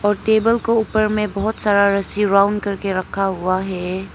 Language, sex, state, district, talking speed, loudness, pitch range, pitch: Hindi, female, Arunachal Pradesh, Papum Pare, 175 wpm, -18 LUFS, 195-215 Hz, 200 Hz